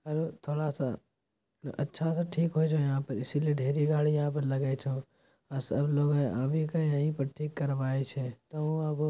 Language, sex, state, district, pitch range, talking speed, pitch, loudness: Maithili, male, Bihar, Bhagalpur, 135-155 Hz, 35 wpm, 145 Hz, -31 LUFS